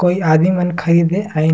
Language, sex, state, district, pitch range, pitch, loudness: Surgujia, male, Chhattisgarh, Sarguja, 160-180 Hz, 175 Hz, -15 LUFS